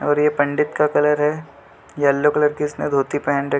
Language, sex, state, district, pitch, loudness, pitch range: Hindi, male, Jharkhand, Sahebganj, 145 Hz, -19 LUFS, 140-150 Hz